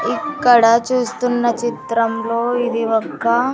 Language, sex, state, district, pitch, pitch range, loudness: Telugu, female, Andhra Pradesh, Sri Satya Sai, 240 Hz, 230-245 Hz, -17 LUFS